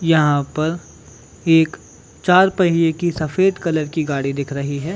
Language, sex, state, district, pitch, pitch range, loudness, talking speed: Hindi, male, Chhattisgarh, Bilaspur, 160 Hz, 145-175 Hz, -18 LUFS, 155 wpm